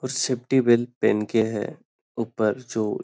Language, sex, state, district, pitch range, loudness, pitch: Hindi, male, Maharashtra, Nagpur, 110-125 Hz, -23 LUFS, 120 Hz